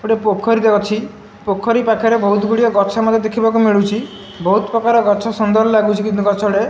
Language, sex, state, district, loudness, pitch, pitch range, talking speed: Odia, male, Odisha, Malkangiri, -15 LUFS, 215 Hz, 205-225 Hz, 160 wpm